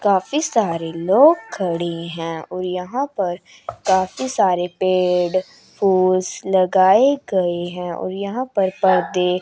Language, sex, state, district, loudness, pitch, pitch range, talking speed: Hindi, female, Chandigarh, Chandigarh, -19 LUFS, 185 Hz, 180-200 Hz, 120 wpm